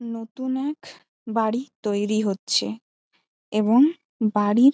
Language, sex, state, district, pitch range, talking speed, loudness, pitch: Bengali, female, West Bengal, Malda, 210-260 Hz, 90 wpm, -23 LUFS, 225 Hz